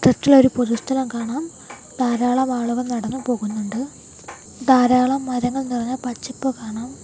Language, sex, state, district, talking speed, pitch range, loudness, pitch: Malayalam, female, Kerala, Kollam, 130 wpm, 240-260 Hz, -20 LUFS, 250 Hz